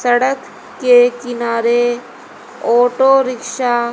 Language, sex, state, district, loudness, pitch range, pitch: Hindi, female, Haryana, Charkhi Dadri, -14 LUFS, 240-255 Hz, 245 Hz